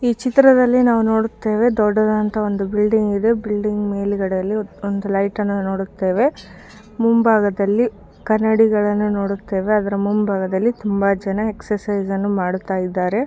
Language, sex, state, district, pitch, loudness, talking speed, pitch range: Kannada, female, Karnataka, Bijapur, 210 Hz, -18 LUFS, 100 wpm, 200-220 Hz